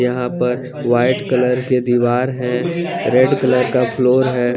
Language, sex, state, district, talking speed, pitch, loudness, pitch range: Hindi, male, Chandigarh, Chandigarh, 160 wpm, 125 Hz, -16 LUFS, 125-130 Hz